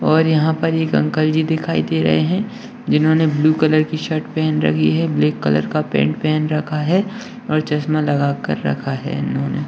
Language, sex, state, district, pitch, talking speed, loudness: Hindi, male, Rajasthan, Nagaur, 155 Hz, 190 wpm, -18 LUFS